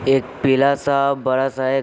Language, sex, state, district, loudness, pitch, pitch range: Hindi, male, Bihar, Vaishali, -18 LUFS, 135 Hz, 130-140 Hz